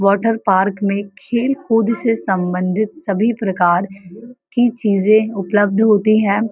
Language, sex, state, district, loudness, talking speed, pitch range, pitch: Hindi, female, Uttar Pradesh, Varanasi, -16 LUFS, 120 wpm, 195-225 Hz, 205 Hz